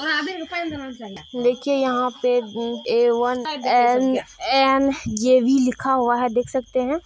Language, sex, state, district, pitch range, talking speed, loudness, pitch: Hindi, female, Bihar, Purnia, 245-275 Hz, 125 wpm, -20 LUFS, 255 Hz